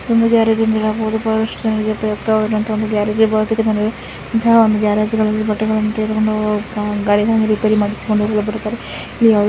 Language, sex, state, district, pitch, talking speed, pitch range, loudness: Kannada, female, Karnataka, Shimoga, 215 Hz, 105 wpm, 215-220 Hz, -16 LUFS